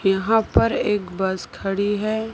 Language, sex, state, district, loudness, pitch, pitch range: Hindi, female, Maharashtra, Mumbai Suburban, -21 LUFS, 205 Hz, 195-215 Hz